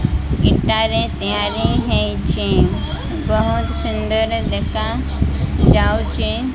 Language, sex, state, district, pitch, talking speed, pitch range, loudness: Odia, female, Odisha, Malkangiri, 75 Hz, 65 wpm, 70-100 Hz, -18 LUFS